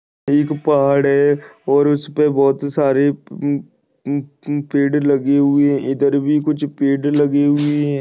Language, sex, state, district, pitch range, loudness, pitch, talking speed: Hindi, male, Maharashtra, Dhule, 140-145 Hz, -17 LUFS, 145 Hz, 155 wpm